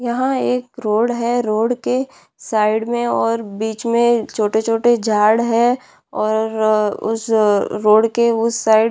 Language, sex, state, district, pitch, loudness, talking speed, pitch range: Hindi, female, Bihar, Madhepura, 230 Hz, -17 LUFS, 140 wpm, 220-240 Hz